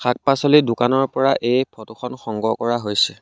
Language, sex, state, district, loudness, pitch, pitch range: Assamese, male, Assam, Sonitpur, -19 LUFS, 125 Hz, 115-135 Hz